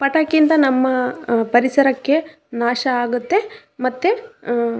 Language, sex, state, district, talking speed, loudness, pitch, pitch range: Kannada, female, Karnataka, Raichur, 90 wpm, -18 LUFS, 265 Hz, 245-315 Hz